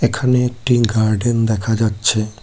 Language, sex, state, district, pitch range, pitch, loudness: Bengali, male, West Bengal, Cooch Behar, 110-120 Hz, 110 Hz, -17 LUFS